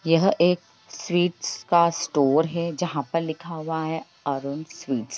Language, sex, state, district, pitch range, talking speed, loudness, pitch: Hindi, male, Bihar, Lakhisarai, 150-170 Hz, 160 wpm, -24 LUFS, 165 Hz